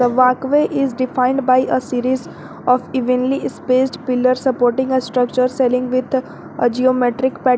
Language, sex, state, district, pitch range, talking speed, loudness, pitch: English, female, Jharkhand, Garhwa, 250-260 Hz, 150 wpm, -17 LUFS, 255 Hz